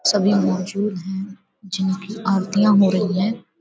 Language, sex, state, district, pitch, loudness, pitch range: Hindi, female, Uttar Pradesh, Hamirpur, 195 Hz, -20 LUFS, 190-205 Hz